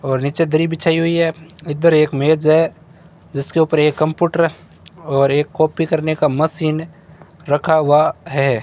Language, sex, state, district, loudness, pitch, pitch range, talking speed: Hindi, male, Rajasthan, Bikaner, -16 LUFS, 155 Hz, 150-165 Hz, 160 wpm